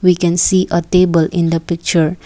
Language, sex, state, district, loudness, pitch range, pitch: English, female, Assam, Kamrup Metropolitan, -14 LUFS, 165-180 Hz, 170 Hz